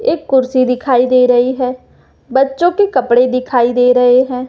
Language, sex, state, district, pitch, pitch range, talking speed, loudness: Hindi, female, Madhya Pradesh, Umaria, 255 Hz, 250-265 Hz, 175 wpm, -12 LUFS